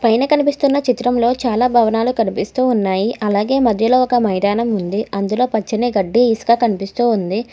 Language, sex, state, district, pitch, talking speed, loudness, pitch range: Telugu, female, Telangana, Hyderabad, 235 Hz, 145 wpm, -16 LUFS, 210-245 Hz